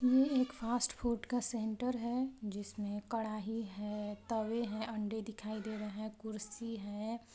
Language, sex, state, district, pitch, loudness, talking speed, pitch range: Hindi, female, Chhattisgarh, Balrampur, 220 Hz, -38 LUFS, 145 wpm, 210-235 Hz